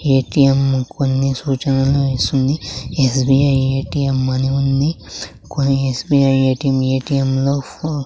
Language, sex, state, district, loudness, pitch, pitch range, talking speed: Telugu, male, Andhra Pradesh, Sri Satya Sai, -17 LUFS, 135 Hz, 135-140 Hz, 110 wpm